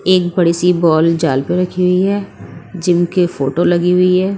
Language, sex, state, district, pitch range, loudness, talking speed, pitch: Hindi, female, Punjab, Pathankot, 170-180 Hz, -14 LUFS, 205 wpm, 175 Hz